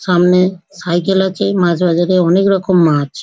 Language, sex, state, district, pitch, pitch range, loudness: Bengali, female, West Bengal, North 24 Parganas, 180 Hz, 175-190 Hz, -13 LUFS